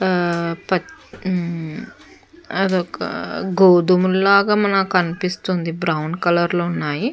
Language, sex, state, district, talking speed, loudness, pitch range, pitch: Telugu, female, Andhra Pradesh, Chittoor, 110 wpm, -19 LUFS, 170-190 Hz, 180 Hz